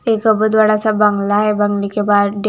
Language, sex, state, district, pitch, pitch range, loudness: Hindi, female, Himachal Pradesh, Shimla, 210 Hz, 205-215 Hz, -14 LUFS